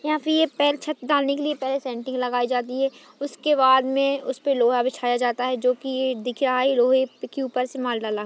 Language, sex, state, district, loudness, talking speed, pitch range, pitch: Hindi, female, Maharashtra, Aurangabad, -23 LUFS, 240 wpm, 250-275 Hz, 260 Hz